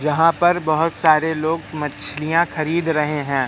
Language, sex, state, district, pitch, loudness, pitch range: Hindi, male, Madhya Pradesh, Katni, 155 Hz, -19 LUFS, 150-165 Hz